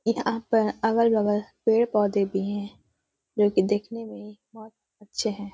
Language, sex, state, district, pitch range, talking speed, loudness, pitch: Hindi, female, Uttar Pradesh, Varanasi, 205-225 Hz, 140 wpm, -25 LUFS, 215 Hz